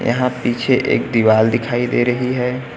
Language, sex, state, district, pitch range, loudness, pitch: Hindi, male, Uttar Pradesh, Lucknow, 120-125 Hz, -17 LUFS, 120 Hz